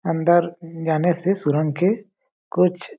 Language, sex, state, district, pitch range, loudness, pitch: Hindi, male, Chhattisgarh, Balrampur, 165-190 Hz, -21 LUFS, 175 Hz